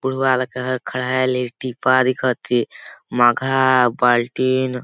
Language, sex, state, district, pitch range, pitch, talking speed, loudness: Awadhi, male, Chhattisgarh, Balrampur, 125-130 Hz, 130 Hz, 125 wpm, -18 LUFS